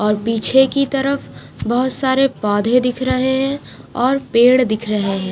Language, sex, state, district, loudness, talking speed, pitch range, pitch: Hindi, female, Punjab, Fazilka, -16 LUFS, 170 wpm, 220-265 Hz, 255 Hz